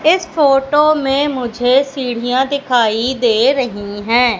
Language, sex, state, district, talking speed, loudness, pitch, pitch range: Hindi, female, Madhya Pradesh, Katni, 125 wpm, -15 LUFS, 265 Hz, 245-290 Hz